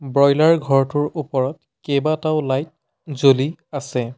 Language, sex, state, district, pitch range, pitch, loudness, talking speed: Assamese, male, Assam, Sonitpur, 135-155 Hz, 140 Hz, -19 LUFS, 115 wpm